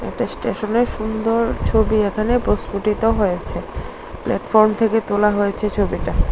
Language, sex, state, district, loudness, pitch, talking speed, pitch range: Bengali, female, Tripura, Unakoti, -19 LUFS, 215 Hz, 115 wpm, 205-225 Hz